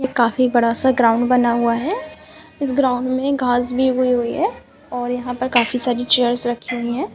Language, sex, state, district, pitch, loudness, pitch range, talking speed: Hindi, female, Andhra Pradesh, Chittoor, 250 Hz, -18 LUFS, 240-260 Hz, 195 wpm